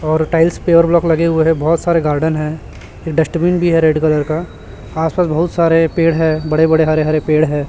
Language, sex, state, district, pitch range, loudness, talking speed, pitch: Hindi, male, Chhattisgarh, Raipur, 155-165 Hz, -14 LUFS, 235 wpm, 160 Hz